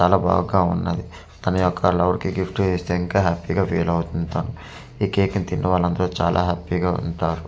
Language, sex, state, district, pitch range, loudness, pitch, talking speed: Telugu, male, Andhra Pradesh, Manyam, 85-95 Hz, -22 LUFS, 90 Hz, 175 wpm